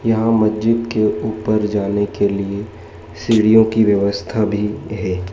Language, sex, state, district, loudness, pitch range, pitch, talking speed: Hindi, male, Madhya Pradesh, Dhar, -17 LUFS, 100-110 Hz, 105 Hz, 135 wpm